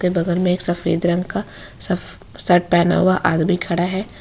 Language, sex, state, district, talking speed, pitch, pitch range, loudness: Hindi, female, Jharkhand, Ranchi, 185 wpm, 175 Hz, 175-180 Hz, -19 LUFS